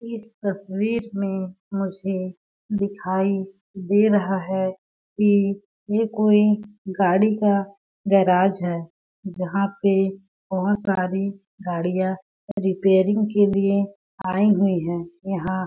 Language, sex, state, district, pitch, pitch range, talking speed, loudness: Hindi, female, Chhattisgarh, Balrampur, 195 Hz, 190-205 Hz, 105 wpm, -22 LUFS